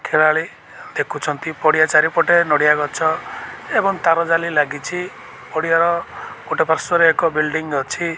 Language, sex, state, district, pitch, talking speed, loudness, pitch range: Odia, male, Odisha, Malkangiri, 160 Hz, 115 wpm, -17 LUFS, 155-170 Hz